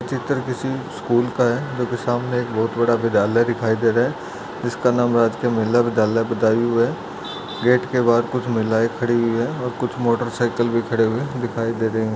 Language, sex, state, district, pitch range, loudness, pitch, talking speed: Hindi, male, Uttar Pradesh, Budaun, 115-125 Hz, -20 LUFS, 120 Hz, 205 wpm